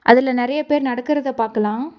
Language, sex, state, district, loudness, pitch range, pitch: Tamil, female, Tamil Nadu, Nilgiris, -19 LUFS, 235-295 Hz, 255 Hz